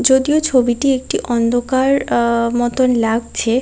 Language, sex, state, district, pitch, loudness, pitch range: Bengali, female, West Bengal, Kolkata, 245 Hz, -16 LUFS, 235-265 Hz